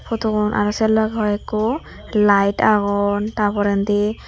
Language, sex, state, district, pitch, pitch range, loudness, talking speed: Chakma, female, Tripura, Dhalai, 210 Hz, 205-220 Hz, -18 LUFS, 140 wpm